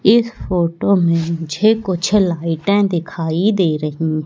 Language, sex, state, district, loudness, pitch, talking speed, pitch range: Hindi, female, Madhya Pradesh, Katni, -17 LUFS, 175 Hz, 125 wpm, 165-200 Hz